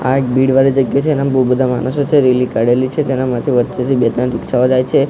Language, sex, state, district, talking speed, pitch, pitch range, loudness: Gujarati, male, Gujarat, Gandhinagar, 270 wpm, 130 Hz, 125-135 Hz, -14 LUFS